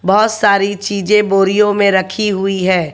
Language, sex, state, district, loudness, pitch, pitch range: Hindi, male, Haryana, Jhajjar, -13 LUFS, 200 Hz, 190-210 Hz